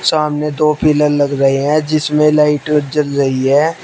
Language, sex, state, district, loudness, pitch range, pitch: Hindi, male, Uttar Pradesh, Shamli, -13 LUFS, 145-150 Hz, 150 Hz